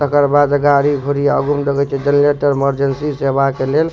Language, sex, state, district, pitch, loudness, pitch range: Maithili, male, Bihar, Supaul, 145 Hz, -15 LUFS, 140-145 Hz